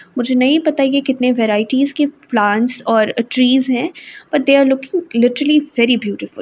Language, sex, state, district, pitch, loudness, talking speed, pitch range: Hindi, female, Uttar Pradesh, Varanasi, 255 Hz, -15 LUFS, 185 wpm, 235-280 Hz